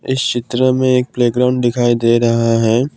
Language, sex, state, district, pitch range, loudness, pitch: Hindi, male, Assam, Kamrup Metropolitan, 115-130 Hz, -14 LUFS, 120 Hz